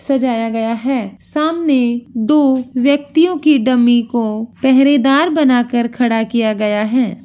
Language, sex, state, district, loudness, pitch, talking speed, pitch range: Hindi, female, Bihar, Begusarai, -14 LUFS, 250 Hz, 130 wpm, 230-280 Hz